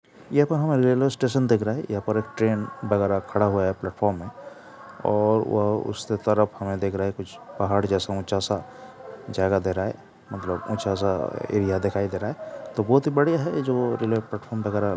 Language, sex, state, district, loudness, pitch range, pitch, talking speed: Hindi, male, Uttar Pradesh, Jalaun, -24 LUFS, 100-115 Hz, 105 Hz, 210 wpm